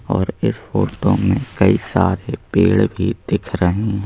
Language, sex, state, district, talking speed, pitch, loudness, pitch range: Hindi, male, Madhya Pradesh, Bhopal, 165 wpm, 100 Hz, -18 LUFS, 95-110 Hz